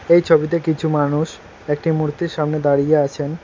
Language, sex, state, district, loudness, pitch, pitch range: Bengali, male, West Bengal, Alipurduar, -18 LUFS, 155 Hz, 145-160 Hz